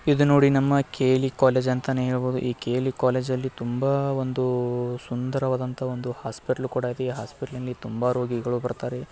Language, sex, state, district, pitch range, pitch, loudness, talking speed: Kannada, male, Karnataka, Belgaum, 125-130 Hz, 130 Hz, -25 LUFS, 165 wpm